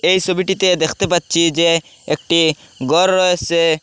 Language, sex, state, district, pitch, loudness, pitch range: Bengali, male, Assam, Hailakandi, 170 Hz, -15 LUFS, 165-185 Hz